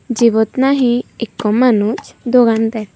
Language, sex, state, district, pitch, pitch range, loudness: Chakma, female, Tripura, Unakoti, 235 Hz, 220-245 Hz, -14 LUFS